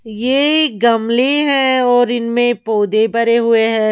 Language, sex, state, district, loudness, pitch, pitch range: Hindi, female, Maharashtra, Mumbai Suburban, -14 LUFS, 235 Hz, 225-255 Hz